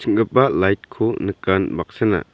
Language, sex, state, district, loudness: Garo, male, Meghalaya, South Garo Hills, -19 LUFS